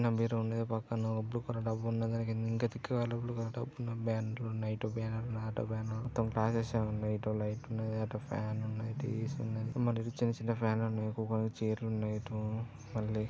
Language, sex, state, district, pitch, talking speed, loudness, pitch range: Telugu, male, Andhra Pradesh, Srikakulam, 115 Hz, 200 wpm, -36 LUFS, 110-115 Hz